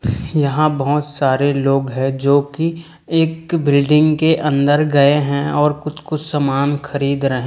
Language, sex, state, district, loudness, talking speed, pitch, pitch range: Hindi, male, Chhattisgarh, Raipur, -16 LUFS, 150 wpm, 145 Hz, 140-155 Hz